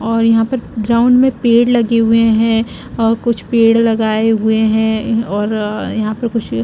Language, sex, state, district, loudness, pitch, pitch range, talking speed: Hindi, female, Chhattisgarh, Bilaspur, -14 LUFS, 225 Hz, 220-235 Hz, 180 wpm